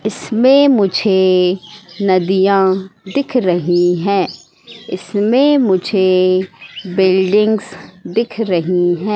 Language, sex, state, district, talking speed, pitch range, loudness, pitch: Hindi, female, Madhya Pradesh, Katni, 80 wpm, 185-215 Hz, -14 LUFS, 190 Hz